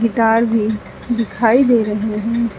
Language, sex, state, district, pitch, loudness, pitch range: Hindi, female, Uttar Pradesh, Saharanpur, 230 Hz, -16 LUFS, 215-235 Hz